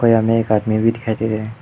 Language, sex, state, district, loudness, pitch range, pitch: Hindi, male, Arunachal Pradesh, Lower Dibang Valley, -17 LUFS, 110-115 Hz, 110 Hz